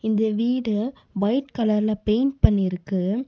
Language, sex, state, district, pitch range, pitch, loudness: Tamil, female, Tamil Nadu, Nilgiris, 210-235 Hz, 215 Hz, -23 LUFS